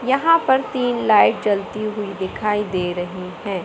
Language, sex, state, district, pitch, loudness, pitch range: Hindi, male, Madhya Pradesh, Katni, 210 Hz, -19 LUFS, 190-245 Hz